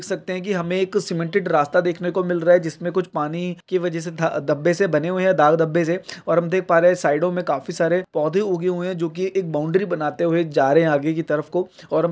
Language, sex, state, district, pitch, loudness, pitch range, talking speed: Hindi, male, Uttar Pradesh, Ghazipur, 175 Hz, -21 LUFS, 165-185 Hz, 280 wpm